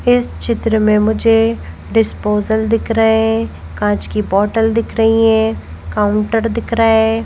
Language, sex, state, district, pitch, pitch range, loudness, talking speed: Hindi, female, Madhya Pradesh, Bhopal, 220 Hz, 210-225 Hz, -15 LUFS, 150 wpm